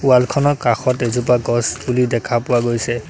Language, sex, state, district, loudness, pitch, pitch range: Assamese, male, Assam, Sonitpur, -17 LUFS, 120 Hz, 120-125 Hz